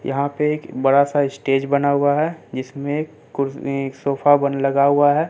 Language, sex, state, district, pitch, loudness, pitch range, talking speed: Hindi, male, Bihar, Katihar, 140 Hz, -19 LUFS, 140-145 Hz, 205 wpm